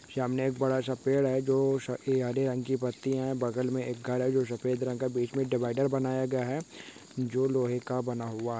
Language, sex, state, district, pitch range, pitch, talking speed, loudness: Hindi, male, West Bengal, Dakshin Dinajpur, 125-135 Hz, 130 Hz, 215 wpm, -30 LUFS